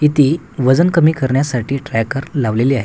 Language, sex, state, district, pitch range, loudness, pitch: Marathi, male, Maharashtra, Washim, 130-145 Hz, -15 LUFS, 135 Hz